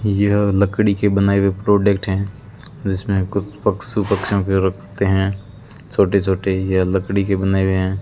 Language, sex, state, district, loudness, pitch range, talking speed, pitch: Hindi, male, Rajasthan, Bikaner, -18 LUFS, 95-100 Hz, 165 wpm, 100 Hz